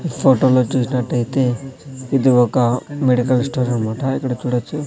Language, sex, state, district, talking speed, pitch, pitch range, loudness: Telugu, male, Andhra Pradesh, Sri Satya Sai, 135 wpm, 130 Hz, 125-135 Hz, -17 LUFS